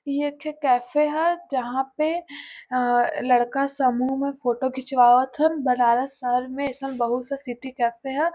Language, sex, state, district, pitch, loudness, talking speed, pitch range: Bhojpuri, female, Uttar Pradesh, Varanasi, 265 Hz, -23 LUFS, 160 wpm, 250-285 Hz